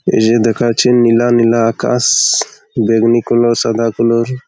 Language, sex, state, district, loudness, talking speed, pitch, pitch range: Bengali, male, West Bengal, Malda, -12 LUFS, 120 wpm, 115 Hz, 115-120 Hz